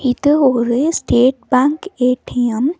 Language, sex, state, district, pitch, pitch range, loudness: Tamil, female, Tamil Nadu, Nilgiris, 255 Hz, 245-290 Hz, -15 LUFS